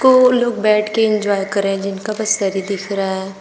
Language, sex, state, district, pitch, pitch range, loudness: Hindi, female, Uttar Pradesh, Shamli, 200 Hz, 195-215 Hz, -17 LUFS